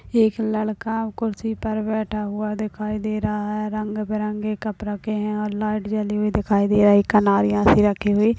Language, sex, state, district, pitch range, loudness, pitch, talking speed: Hindi, male, Maharashtra, Solapur, 210-215 Hz, -22 LUFS, 215 Hz, 165 wpm